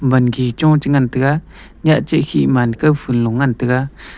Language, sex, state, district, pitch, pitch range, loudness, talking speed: Wancho, male, Arunachal Pradesh, Longding, 130 Hz, 125-145 Hz, -15 LUFS, 160 wpm